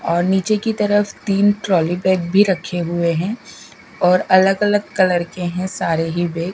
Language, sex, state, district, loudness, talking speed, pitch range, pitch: Hindi, female, Bihar, Katihar, -17 LUFS, 190 wpm, 175-205 Hz, 185 Hz